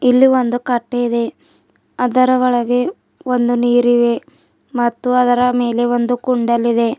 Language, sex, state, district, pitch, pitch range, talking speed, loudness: Kannada, female, Karnataka, Bidar, 245 Hz, 240-250 Hz, 120 wpm, -16 LUFS